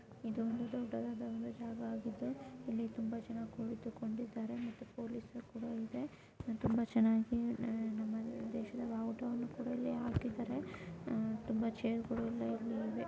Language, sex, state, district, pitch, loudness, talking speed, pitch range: Kannada, female, Karnataka, Dharwad, 230 Hz, -40 LUFS, 125 wpm, 225-240 Hz